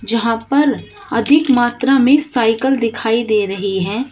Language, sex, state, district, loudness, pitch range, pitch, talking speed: Hindi, female, Uttar Pradesh, Shamli, -15 LUFS, 225-270 Hz, 240 Hz, 145 wpm